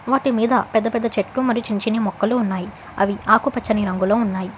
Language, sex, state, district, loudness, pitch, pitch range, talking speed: Telugu, female, Telangana, Hyderabad, -20 LUFS, 220 Hz, 200-240 Hz, 185 wpm